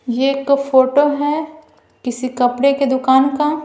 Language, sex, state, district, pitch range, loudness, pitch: Hindi, female, Bihar, Patna, 260-290 Hz, -16 LUFS, 275 Hz